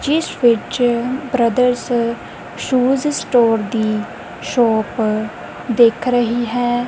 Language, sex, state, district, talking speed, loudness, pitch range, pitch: Punjabi, female, Punjab, Kapurthala, 85 wpm, -17 LUFS, 230-250 Hz, 240 Hz